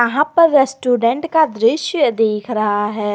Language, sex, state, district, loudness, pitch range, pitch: Hindi, female, Jharkhand, Garhwa, -15 LUFS, 215-295 Hz, 245 Hz